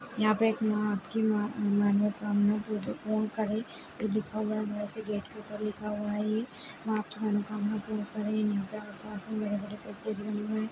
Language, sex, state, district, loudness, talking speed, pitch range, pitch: Kumaoni, female, Uttarakhand, Uttarkashi, -32 LUFS, 185 wpm, 210-215 Hz, 215 Hz